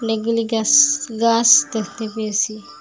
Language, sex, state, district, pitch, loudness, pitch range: Bengali, female, Assam, Hailakandi, 225 Hz, -16 LUFS, 215-230 Hz